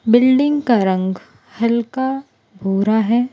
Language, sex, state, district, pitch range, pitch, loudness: Hindi, female, Gujarat, Valsad, 200-260 Hz, 235 Hz, -17 LUFS